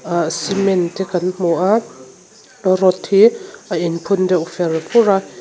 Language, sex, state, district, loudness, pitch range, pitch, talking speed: Mizo, female, Mizoram, Aizawl, -16 LUFS, 170-195 Hz, 185 Hz, 145 wpm